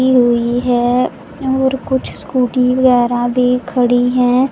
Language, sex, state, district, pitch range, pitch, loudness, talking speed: Hindi, female, Punjab, Pathankot, 245-260 Hz, 250 Hz, -14 LUFS, 135 wpm